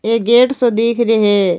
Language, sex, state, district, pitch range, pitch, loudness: Rajasthani, female, Rajasthan, Nagaur, 220-235 Hz, 230 Hz, -13 LUFS